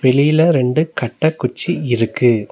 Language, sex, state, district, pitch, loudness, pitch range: Tamil, male, Tamil Nadu, Nilgiris, 135 Hz, -16 LUFS, 125-160 Hz